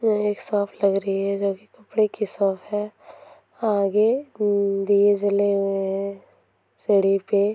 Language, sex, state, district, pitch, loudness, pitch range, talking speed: Hindi, female, Bihar, Sitamarhi, 200 Hz, -22 LUFS, 195-210 Hz, 150 wpm